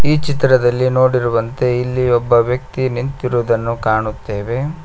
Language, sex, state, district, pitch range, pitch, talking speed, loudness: Kannada, male, Karnataka, Koppal, 120-130 Hz, 125 Hz, 100 wpm, -16 LUFS